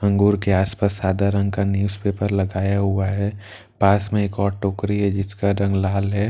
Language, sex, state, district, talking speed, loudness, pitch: Hindi, male, Bihar, Katihar, 200 wpm, -21 LUFS, 100 Hz